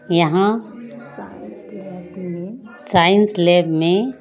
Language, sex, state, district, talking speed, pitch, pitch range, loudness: Hindi, female, Chhattisgarh, Raipur, 55 wpm, 185 Hz, 175-210 Hz, -16 LUFS